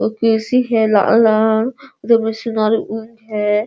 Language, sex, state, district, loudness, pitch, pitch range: Hindi, female, Bihar, Sitamarhi, -16 LUFS, 225 Hz, 220-230 Hz